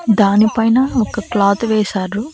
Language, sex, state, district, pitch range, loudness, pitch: Telugu, female, Andhra Pradesh, Annamaya, 200-230 Hz, -15 LUFS, 215 Hz